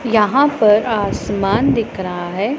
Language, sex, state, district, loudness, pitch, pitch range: Hindi, female, Punjab, Pathankot, -16 LUFS, 210 Hz, 200-245 Hz